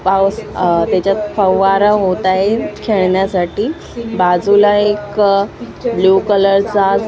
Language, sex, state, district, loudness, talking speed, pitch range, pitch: Marathi, female, Maharashtra, Mumbai Suburban, -14 LUFS, 85 wpm, 190-205 Hz, 195 Hz